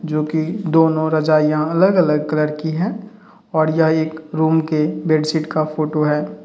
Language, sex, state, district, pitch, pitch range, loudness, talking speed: Hindi, male, Uttar Pradesh, Hamirpur, 155 Hz, 155-160 Hz, -18 LUFS, 150 wpm